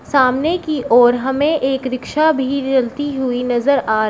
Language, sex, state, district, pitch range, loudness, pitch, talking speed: Hindi, female, Uttar Pradesh, Shamli, 250-290 Hz, -16 LUFS, 265 Hz, 175 wpm